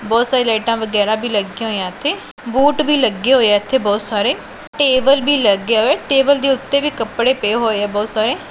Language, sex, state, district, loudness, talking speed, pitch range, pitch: Punjabi, female, Punjab, Pathankot, -16 LUFS, 220 wpm, 215-270 Hz, 230 Hz